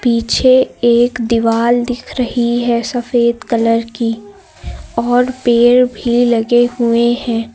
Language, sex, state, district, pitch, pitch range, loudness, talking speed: Hindi, female, Uttar Pradesh, Lucknow, 240 Hz, 230-245 Hz, -14 LUFS, 120 wpm